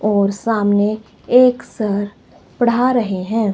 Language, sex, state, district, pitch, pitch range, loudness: Hindi, female, Himachal Pradesh, Shimla, 215 Hz, 205-235 Hz, -16 LUFS